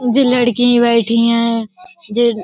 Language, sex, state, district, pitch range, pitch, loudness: Hindi, female, Uttar Pradesh, Budaun, 230-250 Hz, 240 Hz, -13 LUFS